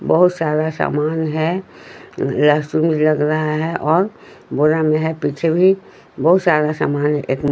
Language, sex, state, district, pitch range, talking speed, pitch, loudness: Hindi, female, Bihar, Patna, 150-165 Hz, 160 wpm, 155 Hz, -17 LUFS